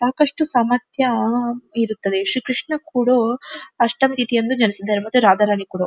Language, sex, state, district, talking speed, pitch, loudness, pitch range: Kannada, female, Karnataka, Dharwad, 135 wpm, 240 Hz, -19 LUFS, 215-255 Hz